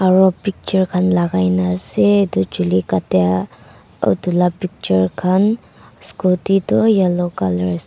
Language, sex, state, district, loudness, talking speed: Nagamese, female, Nagaland, Dimapur, -17 LUFS, 130 wpm